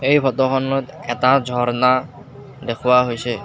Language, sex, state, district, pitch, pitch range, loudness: Assamese, male, Assam, Kamrup Metropolitan, 130 Hz, 125-135 Hz, -18 LUFS